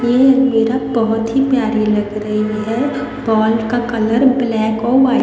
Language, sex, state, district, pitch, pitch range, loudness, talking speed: Hindi, female, Haryana, Rohtak, 230 Hz, 220-255 Hz, -15 LUFS, 170 wpm